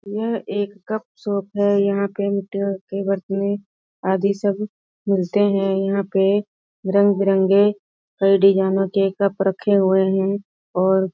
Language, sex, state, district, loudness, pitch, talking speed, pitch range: Hindi, female, Bihar, Sitamarhi, -20 LUFS, 200 Hz, 130 wpm, 195-205 Hz